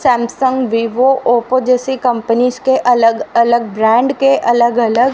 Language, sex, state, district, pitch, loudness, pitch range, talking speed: Hindi, female, Haryana, Rohtak, 245 Hz, -13 LUFS, 235-260 Hz, 140 wpm